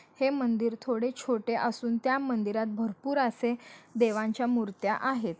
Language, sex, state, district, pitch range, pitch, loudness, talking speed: Hindi, female, Maharashtra, Solapur, 225-255 Hz, 235 Hz, -30 LUFS, 135 wpm